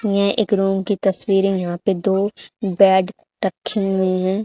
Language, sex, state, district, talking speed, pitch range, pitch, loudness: Hindi, female, Haryana, Charkhi Dadri, 175 wpm, 190-205 Hz, 195 Hz, -19 LUFS